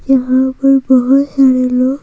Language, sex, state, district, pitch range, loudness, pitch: Hindi, female, Bihar, Patna, 255-270 Hz, -11 LUFS, 265 Hz